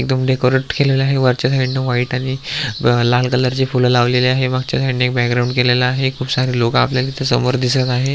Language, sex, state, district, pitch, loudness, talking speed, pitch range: Marathi, male, Maharashtra, Aurangabad, 130 Hz, -16 LUFS, 200 wpm, 125-130 Hz